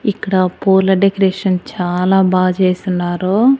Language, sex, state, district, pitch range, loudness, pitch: Telugu, female, Andhra Pradesh, Annamaya, 185-195 Hz, -14 LUFS, 190 Hz